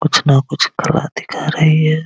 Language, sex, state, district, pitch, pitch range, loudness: Hindi, male, Bihar, Araria, 155 Hz, 150-155 Hz, -15 LUFS